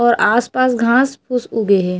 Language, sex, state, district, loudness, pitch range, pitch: Chhattisgarhi, female, Chhattisgarh, Raigarh, -16 LUFS, 225-255 Hz, 240 Hz